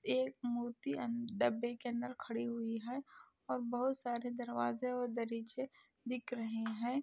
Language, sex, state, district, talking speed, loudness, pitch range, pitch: Hindi, female, Jharkhand, Sahebganj, 145 wpm, -40 LUFS, 230-250 Hz, 240 Hz